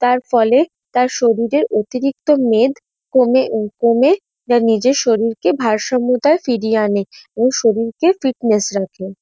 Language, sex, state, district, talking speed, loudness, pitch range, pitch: Bengali, female, West Bengal, North 24 Parganas, 110 wpm, -16 LUFS, 220-260 Hz, 240 Hz